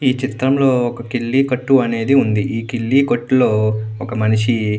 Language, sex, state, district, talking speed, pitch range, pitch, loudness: Telugu, male, Andhra Pradesh, Anantapur, 175 wpm, 110-130 Hz, 120 Hz, -17 LUFS